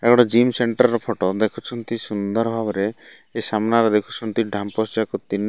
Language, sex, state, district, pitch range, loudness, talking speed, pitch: Odia, male, Odisha, Malkangiri, 105-115 Hz, -21 LUFS, 155 wpm, 110 Hz